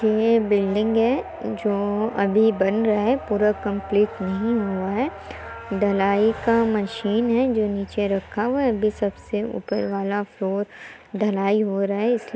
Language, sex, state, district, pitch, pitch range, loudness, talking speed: Hindi, female, Bihar, Muzaffarpur, 210 Hz, 200-225 Hz, -22 LUFS, 150 wpm